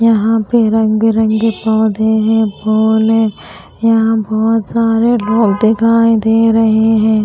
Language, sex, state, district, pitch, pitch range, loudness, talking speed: Hindi, female, Maharashtra, Gondia, 220 Hz, 220-225 Hz, -12 LUFS, 130 wpm